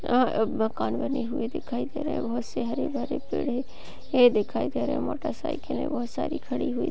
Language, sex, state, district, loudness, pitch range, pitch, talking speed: Hindi, female, Maharashtra, Sindhudurg, -28 LUFS, 235-265 Hz, 250 Hz, 190 wpm